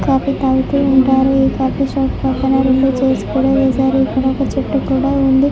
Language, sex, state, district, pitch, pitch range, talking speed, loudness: Telugu, female, Andhra Pradesh, Guntur, 265 Hz, 265-270 Hz, 175 wpm, -14 LUFS